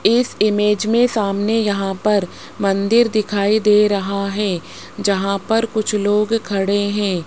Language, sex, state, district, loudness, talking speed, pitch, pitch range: Hindi, female, Rajasthan, Jaipur, -17 LUFS, 140 wpm, 205 Hz, 200-215 Hz